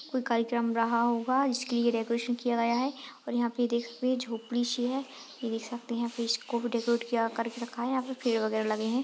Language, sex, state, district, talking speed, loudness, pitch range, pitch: Hindi, female, Goa, North and South Goa, 245 wpm, -30 LUFS, 235-250 Hz, 235 Hz